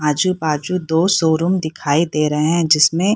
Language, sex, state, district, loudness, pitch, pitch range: Hindi, female, Bihar, Purnia, -16 LUFS, 165 Hz, 155-180 Hz